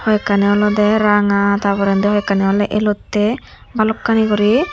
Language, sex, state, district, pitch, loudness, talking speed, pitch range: Chakma, female, Tripura, Dhalai, 210 Hz, -15 LUFS, 125 wpm, 200-215 Hz